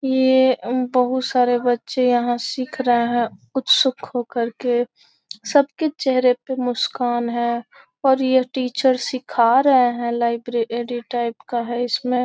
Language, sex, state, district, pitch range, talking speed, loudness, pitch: Hindi, female, Bihar, Gopalganj, 240-260 Hz, 140 wpm, -20 LUFS, 245 Hz